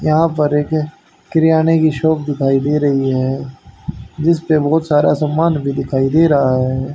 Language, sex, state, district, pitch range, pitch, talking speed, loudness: Hindi, male, Haryana, Jhajjar, 135-160 Hz, 150 Hz, 175 wpm, -15 LUFS